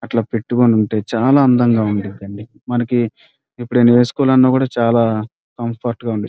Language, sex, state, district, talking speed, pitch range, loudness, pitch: Telugu, male, Andhra Pradesh, Krishna, 145 wpm, 110-125 Hz, -15 LUFS, 120 Hz